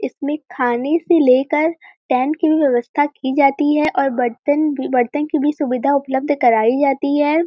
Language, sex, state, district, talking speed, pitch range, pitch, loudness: Hindi, female, Uttar Pradesh, Varanasi, 170 wpm, 265-300 Hz, 290 Hz, -17 LUFS